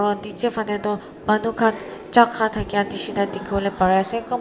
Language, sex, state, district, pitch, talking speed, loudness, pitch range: Nagamese, female, Nagaland, Kohima, 210 Hz, 165 wpm, -21 LUFS, 200-225 Hz